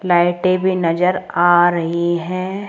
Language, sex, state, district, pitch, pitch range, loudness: Hindi, female, Rajasthan, Jaipur, 175 Hz, 175-185 Hz, -16 LUFS